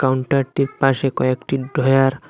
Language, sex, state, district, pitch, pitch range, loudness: Bengali, male, Assam, Hailakandi, 135 Hz, 130-135 Hz, -19 LUFS